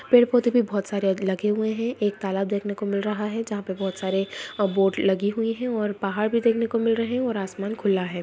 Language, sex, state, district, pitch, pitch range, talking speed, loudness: Hindi, female, Bihar, Saharsa, 205 Hz, 195-225 Hz, 250 wpm, -24 LUFS